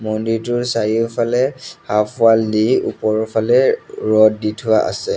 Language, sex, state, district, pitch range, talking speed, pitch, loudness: Assamese, male, Assam, Sonitpur, 110-130 Hz, 125 wpm, 115 Hz, -16 LUFS